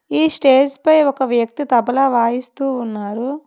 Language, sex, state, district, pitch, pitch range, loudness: Telugu, female, Telangana, Hyderabad, 265 Hz, 240-280 Hz, -16 LUFS